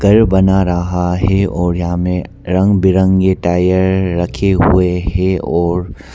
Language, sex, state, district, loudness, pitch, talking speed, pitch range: Hindi, male, Arunachal Pradesh, Papum Pare, -14 LUFS, 90 Hz, 135 wpm, 90-95 Hz